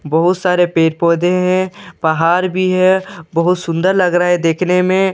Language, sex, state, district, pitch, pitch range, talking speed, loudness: Hindi, male, Bihar, Katihar, 180 Hz, 170-185 Hz, 175 wpm, -14 LUFS